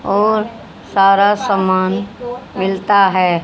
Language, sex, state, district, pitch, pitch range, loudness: Hindi, female, Haryana, Jhajjar, 200 Hz, 190-210 Hz, -14 LUFS